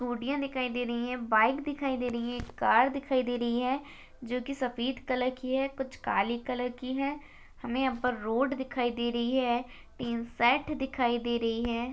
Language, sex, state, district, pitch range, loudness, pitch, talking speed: Hindi, female, Maharashtra, Chandrapur, 240-265 Hz, -30 LUFS, 250 Hz, 200 wpm